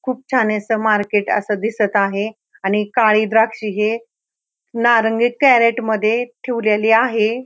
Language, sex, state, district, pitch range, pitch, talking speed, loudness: Marathi, female, Maharashtra, Pune, 210-235 Hz, 220 Hz, 130 wpm, -17 LUFS